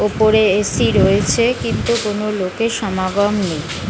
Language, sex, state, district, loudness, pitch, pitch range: Bengali, female, West Bengal, North 24 Parganas, -16 LUFS, 205 Hz, 185-215 Hz